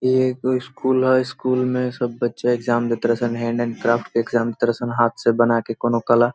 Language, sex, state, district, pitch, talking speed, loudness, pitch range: Bhojpuri, male, Bihar, Saran, 120 Hz, 140 wpm, -20 LUFS, 115-125 Hz